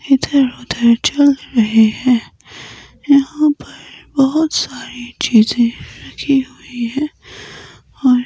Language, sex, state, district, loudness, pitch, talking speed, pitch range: Hindi, female, Himachal Pradesh, Shimla, -15 LUFS, 265 Hz, 100 wpm, 235-285 Hz